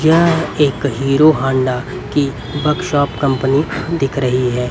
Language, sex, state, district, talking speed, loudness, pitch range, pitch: Hindi, male, Haryana, Rohtak, 115 wpm, -16 LUFS, 130-150 Hz, 140 Hz